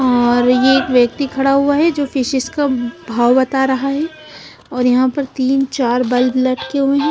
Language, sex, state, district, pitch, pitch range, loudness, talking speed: Hindi, female, Punjab, Fazilka, 260 Hz, 250-280 Hz, -15 LUFS, 200 wpm